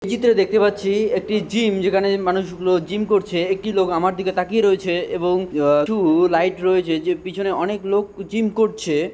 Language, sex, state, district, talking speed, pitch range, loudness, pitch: Bengali, male, West Bengal, Dakshin Dinajpur, 170 wpm, 180-210 Hz, -19 LUFS, 195 Hz